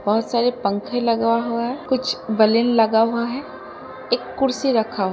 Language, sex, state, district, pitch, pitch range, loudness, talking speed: Hindi, female, Uttar Pradesh, Jalaun, 235 Hz, 225-245 Hz, -20 LUFS, 185 wpm